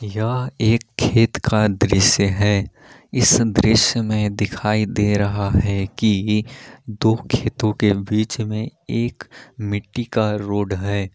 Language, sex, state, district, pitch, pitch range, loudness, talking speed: Hindi, male, Jharkhand, Palamu, 110 Hz, 100-115 Hz, -19 LUFS, 130 wpm